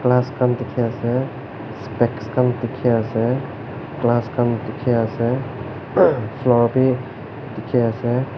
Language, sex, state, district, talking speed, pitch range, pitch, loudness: Nagamese, male, Nagaland, Kohima, 115 wpm, 115-130 Hz, 120 Hz, -20 LUFS